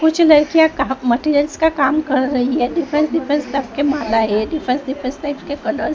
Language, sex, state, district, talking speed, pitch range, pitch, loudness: Hindi, female, Maharashtra, Mumbai Suburban, 170 wpm, 265-315 Hz, 285 Hz, -17 LUFS